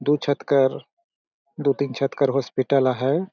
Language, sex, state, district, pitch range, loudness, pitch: Surgujia, male, Chhattisgarh, Sarguja, 135-145 Hz, -22 LUFS, 140 Hz